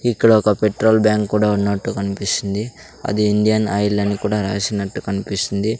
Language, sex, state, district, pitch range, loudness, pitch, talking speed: Telugu, male, Andhra Pradesh, Sri Satya Sai, 100-110 Hz, -18 LUFS, 105 Hz, 145 wpm